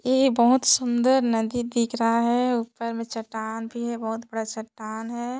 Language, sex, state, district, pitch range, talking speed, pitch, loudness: Chhattisgarhi, female, Chhattisgarh, Sarguja, 225-245 Hz, 180 wpm, 235 Hz, -24 LUFS